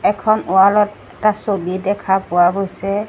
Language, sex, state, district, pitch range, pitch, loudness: Assamese, female, Assam, Sonitpur, 190-210 Hz, 195 Hz, -16 LUFS